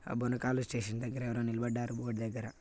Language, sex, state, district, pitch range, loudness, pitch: Telugu, male, Telangana, Nalgonda, 115-120 Hz, -36 LUFS, 120 Hz